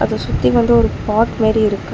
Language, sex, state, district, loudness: Tamil, female, Tamil Nadu, Chennai, -15 LUFS